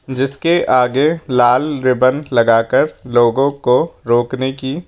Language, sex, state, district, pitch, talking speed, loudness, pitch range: Hindi, male, Rajasthan, Jaipur, 130 Hz, 110 wpm, -15 LUFS, 125-140 Hz